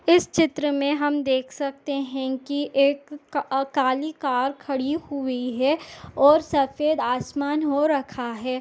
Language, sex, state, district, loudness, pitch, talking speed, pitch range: Hindi, female, Chhattisgarh, Bastar, -23 LUFS, 280 Hz, 145 wpm, 265-295 Hz